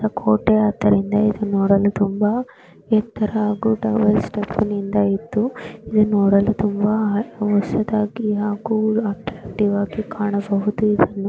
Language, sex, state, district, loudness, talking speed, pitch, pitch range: Kannada, female, Karnataka, Gulbarga, -19 LUFS, 65 wpm, 210 Hz, 205-215 Hz